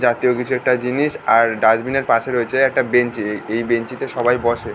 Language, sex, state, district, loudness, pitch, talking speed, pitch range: Bengali, male, West Bengal, North 24 Parganas, -18 LUFS, 120 Hz, 215 wpm, 115-125 Hz